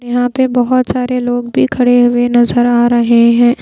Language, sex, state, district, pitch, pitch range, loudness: Hindi, female, Bihar, Patna, 245 Hz, 240-250 Hz, -11 LUFS